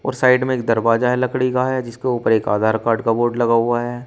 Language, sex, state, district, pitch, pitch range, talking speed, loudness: Hindi, male, Uttar Pradesh, Shamli, 120 Hz, 115-125 Hz, 265 wpm, -18 LUFS